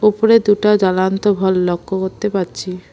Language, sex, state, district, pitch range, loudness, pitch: Bengali, female, West Bengal, Alipurduar, 185-210 Hz, -16 LUFS, 190 Hz